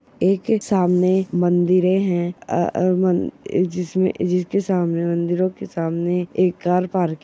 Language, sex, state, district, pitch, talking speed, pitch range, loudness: Hindi, female, Bihar, Purnia, 180 Hz, 135 wpm, 175-185 Hz, -20 LUFS